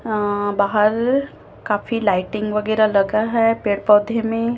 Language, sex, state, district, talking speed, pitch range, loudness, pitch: Hindi, female, Chhattisgarh, Raipur, 130 wpm, 205-225 Hz, -18 LUFS, 215 Hz